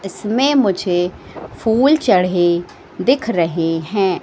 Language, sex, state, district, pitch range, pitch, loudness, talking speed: Hindi, female, Madhya Pradesh, Katni, 175-235 Hz, 190 Hz, -16 LUFS, 100 wpm